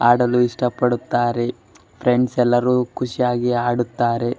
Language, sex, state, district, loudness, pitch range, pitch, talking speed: Kannada, male, Karnataka, Bellary, -19 LUFS, 120-125 Hz, 120 Hz, 110 wpm